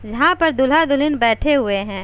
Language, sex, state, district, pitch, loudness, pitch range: Hindi, female, Uttar Pradesh, Jalaun, 280 Hz, -16 LUFS, 220-300 Hz